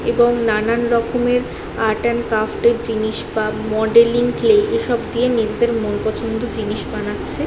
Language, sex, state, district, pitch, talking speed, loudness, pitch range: Bengali, female, West Bengal, Jhargram, 230 Hz, 135 wpm, -18 LUFS, 220-240 Hz